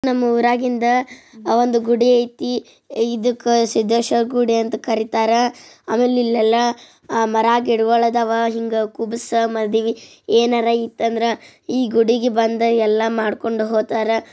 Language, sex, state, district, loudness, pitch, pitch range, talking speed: Kannada, male, Karnataka, Bijapur, -18 LUFS, 230 Hz, 225-240 Hz, 110 wpm